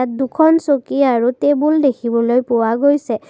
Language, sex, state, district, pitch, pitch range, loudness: Assamese, female, Assam, Kamrup Metropolitan, 265 Hz, 235-290 Hz, -15 LUFS